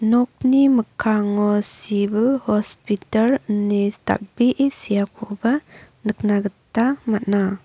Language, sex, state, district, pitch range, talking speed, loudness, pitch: Garo, female, Meghalaya, North Garo Hills, 205-240 Hz, 80 wpm, -18 LUFS, 215 Hz